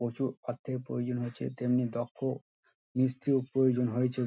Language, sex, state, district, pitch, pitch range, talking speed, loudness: Bengali, male, West Bengal, Dakshin Dinajpur, 125 Hz, 120-130 Hz, 125 wpm, -32 LUFS